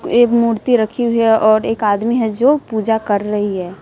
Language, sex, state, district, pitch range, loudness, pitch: Hindi, female, Bihar, West Champaran, 210-235 Hz, -15 LUFS, 225 Hz